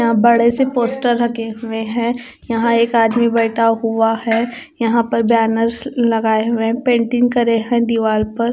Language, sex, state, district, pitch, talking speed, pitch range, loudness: Hindi, female, Chandigarh, Chandigarh, 230 Hz, 175 wpm, 225-235 Hz, -16 LUFS